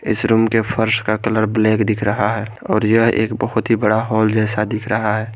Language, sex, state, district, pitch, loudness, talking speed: Hindi, male, Jharkhand, Garhwa, 110 Hz, -17 LUFS, 235 wpm